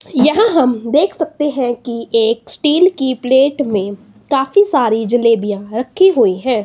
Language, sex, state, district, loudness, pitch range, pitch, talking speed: Hindi, female, Himachal Pradesh, Shimla, -14 LUFS, 230-300 Hz, 255 Hz, 155 wpm